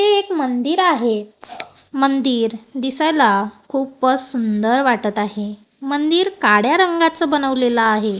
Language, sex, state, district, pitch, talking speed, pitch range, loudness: Marathi, female, Maharashtra, Gondia, 260 Hz, 110 wpm, 220-300 Hz, -17 LUFS